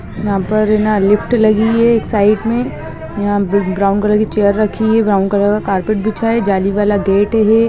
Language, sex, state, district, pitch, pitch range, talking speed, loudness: Hindi, male, Bihar, Gaya, 210 Hz, 200-220 Hz, 180 wpm, -14 LUFS